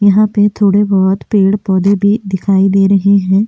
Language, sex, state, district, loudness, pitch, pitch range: Hindi, female, Goa, North and South Goa, -11 LUFS, 200 Hz, 195-205 Hz